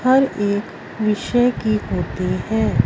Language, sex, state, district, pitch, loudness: Hindi, female, Punjab, Fazilka, 210 Hz, -20 LUFS